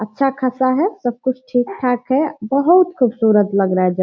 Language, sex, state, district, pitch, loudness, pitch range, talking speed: Hindi, female, Bihar, Purnia, 250 Hz, -17 LUFS, 215-270 Hz, 165 wpm